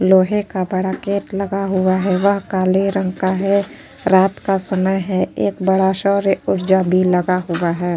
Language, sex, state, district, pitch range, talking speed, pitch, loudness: Hindi, female, Uttar Pradesh, Etah, 185-195 Hz, 180 wpm, 190 Hz, -17 LUFS